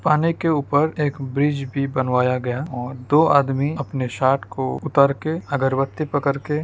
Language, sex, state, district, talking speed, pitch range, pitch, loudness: Hindi, male, Uttar Pradesh, Deoria, 180 wpm, 130-150 Hz, 140 Hz, -21 LUFS